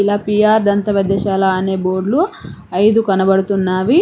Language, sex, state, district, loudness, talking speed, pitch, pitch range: Telugu, female, Telangana, Mahabubabad, -15 LUFS, 120 wpm, 200 Hz, 190-210 Hz